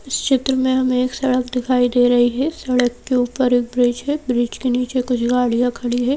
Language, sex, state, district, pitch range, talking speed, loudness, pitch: Hindi, female, Madhya Pradesh, Bhopal, 245-260 Hz, 225 wpm, -18 LUFS, 250 Hz